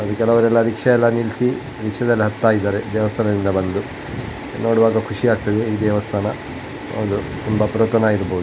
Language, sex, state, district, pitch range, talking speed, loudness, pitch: Kannada, male, Karnataka, Dakshina Kannada, 105-115 Hz, 140 wpm, -19 LUFS, 110 Hz